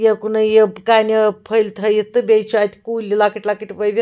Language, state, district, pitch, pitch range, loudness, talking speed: Kashmiri, Punjab, Kapurthala, 215 Hz, 210-220 Hz, -16 LUFS, 105 wpm